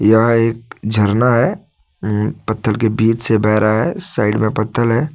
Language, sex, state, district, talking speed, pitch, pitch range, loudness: Hindi, male, Jharkhand, Deoghar, 185 wpm, 110 Hz, 110-115 Hz, -16 LUFS